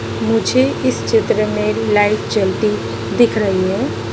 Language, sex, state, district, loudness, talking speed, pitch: Hindi, female, Madhya Pradesh, Dhar, -16 LUFS, 130 wpm, 210 Hz